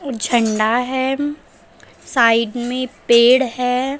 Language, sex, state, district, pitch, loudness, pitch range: Marathi, female, Maharashtra, Aurangabad, 250 Hz, -17 LUFS, 235-260 Hz